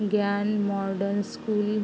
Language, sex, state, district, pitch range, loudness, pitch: Hindi, female, Uttar Pradesh, Jalaun, 200-210 Hz, -27 LUFS, 205 Hz